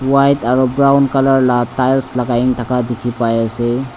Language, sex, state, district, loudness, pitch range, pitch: Nagamese, male, Nagaland, Dimapur, -14 LUFS, 120-135 Hz, 125 Hz